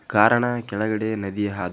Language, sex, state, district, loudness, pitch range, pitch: Kannada, male, Karnataka, Chamarajanagar, -22 LUFS, 100-110 Hz, 105 Hz